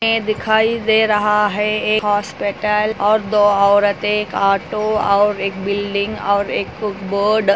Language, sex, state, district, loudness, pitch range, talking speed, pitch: Hindi, female, Andhra Pradesh, Anantapur, -17 LUFS, 200-215 Hz, 135 wpm, 210 Hz